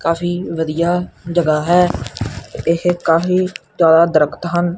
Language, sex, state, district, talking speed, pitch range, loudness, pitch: Punjabi, male, Punjab, Kapurthala, 115 wpm, 155-175 Hz, -16 LUFS, 170 Hz